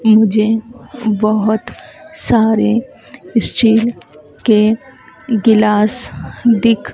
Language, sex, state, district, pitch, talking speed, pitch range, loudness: Hindi, female, Madhya Pradesh, Dhar, 220 Hz, 60 wpm, 215-235 Hz, -14 LUFS